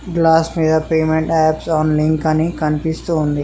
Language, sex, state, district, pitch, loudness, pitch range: Telugu, male, Andhra Pradesh, Srikakulam, 160 Hz, -16 LUFS, 155-160 Hz